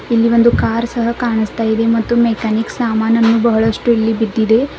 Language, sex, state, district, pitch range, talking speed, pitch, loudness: Kannada, female, Karnataka, Bidar, 225-235 Hz, 140 wpm, 230 Hz, -14 LUFS